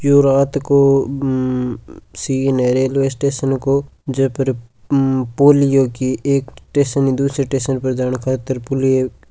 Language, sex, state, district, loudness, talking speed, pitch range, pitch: Marwari, male, Rajasthan, Churu, -17 LUFS, 140 wpm, 130-140 Hz, 135 Hz